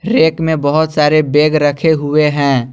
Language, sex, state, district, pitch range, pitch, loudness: Hindi, male, Jharkhand, Garhwa, 145-160 Hz, 150 Hz, -13 LUFS